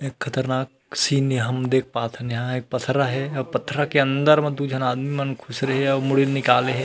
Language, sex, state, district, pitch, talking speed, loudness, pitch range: Chhattisgarhi, male, Chhattisgarh, Rajnandgaon, 135 Hz, 220 wpm, -22 LUFS, 130-140 Hz